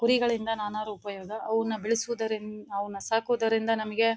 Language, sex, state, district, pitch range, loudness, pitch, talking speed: Kannada, female, Karnataka, Bellary, 215-230 Hz, -29 LUFS, 220 Hz, 130 wpm